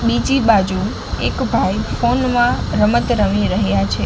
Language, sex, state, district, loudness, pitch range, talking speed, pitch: Gujarati, female, Gujarat, Gandhinagar, -17 LUFS, 145-245 Hz, 150 wpm, 230 Hz